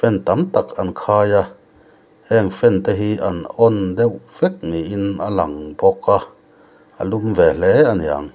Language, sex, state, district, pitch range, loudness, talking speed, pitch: Mizo, male, Mizoram, Aizawl, 95-115 Hz, -17 LUFS, 170 wpm, 100 Hz